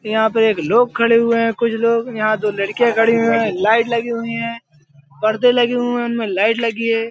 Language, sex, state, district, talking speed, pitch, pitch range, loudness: Hindi, male, Uttar Pradesh, Hamirpur, 230 wpm, 230 Hz, 220-235 Hz, -16 LUFS